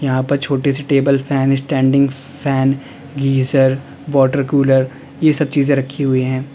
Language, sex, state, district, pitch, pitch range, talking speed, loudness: Hindi, male, Uttar Pradesh, Lalitpur, 135 Hz, 135-140 Hz, 155 wpm, -16 LUFS